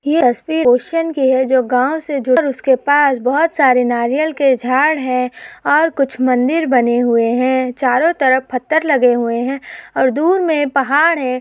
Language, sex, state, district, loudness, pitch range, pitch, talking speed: Hindi, female, Maharashtra, Pune, -15 LUFS, 250-300 Hz, 265 Hz, 175 wpm